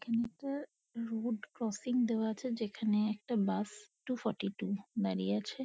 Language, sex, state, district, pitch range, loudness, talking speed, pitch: Bengali, female, West Bengal, Kolkata, 210-240 Hz, -36 LUFS, 140 wpm, 220 Hz